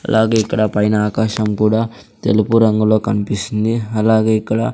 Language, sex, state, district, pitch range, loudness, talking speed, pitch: Telugu, male, Andhra Pradesh, Sri Satya Sai, 105-110 Hz, -16 LUFS, 125 wpm, 110 Hz